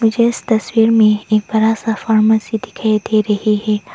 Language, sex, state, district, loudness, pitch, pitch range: Hindi, female, Arunachal Pradesh, Longding, -15 LUFS, 220 Hz, 215-225 Hz